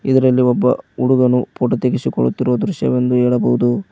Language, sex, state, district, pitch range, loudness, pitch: Kannada, male, Karnataka, Koppal, 95-125 Hz, -16 LUFS, 125 Hz